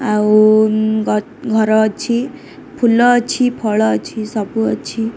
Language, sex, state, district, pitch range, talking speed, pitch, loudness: Odia, female, Odisha, Khordha, 215-240 Hz, 115 wpm, 220 Hz, -15 LUFS